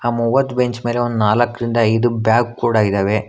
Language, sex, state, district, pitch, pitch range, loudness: Kannada, male, Karnataka, Bangalore, 120 Hz, 110-120 Hz, -17 LUFS